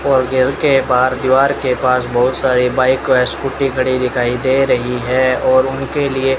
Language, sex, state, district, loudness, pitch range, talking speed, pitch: Hindi, male, Rajasthan, Bikaner, -15 LUFS, 125-135 Hz, 190 wpm, 130 Hz